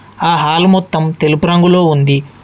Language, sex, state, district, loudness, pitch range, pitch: Telugu, male, Telangana, Adilabad, -11 LUFS, 145-175 Hz, 160 Hz